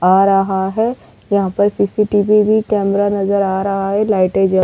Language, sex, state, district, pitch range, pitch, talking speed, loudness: Hindi, female, Delhi, New Delhi, 195-205 Hz, 200 Hz, 195 wpm, -15 LUFS